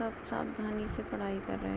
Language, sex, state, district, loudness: Hindi, female, Jharkhand, Sahebganj, -37 LUFS